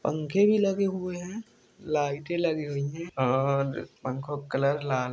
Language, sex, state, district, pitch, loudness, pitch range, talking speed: Hindi, male, Rajasthan, Churu, 150 Hz, -28 LUFS, 140-180 Hz, 165 wpm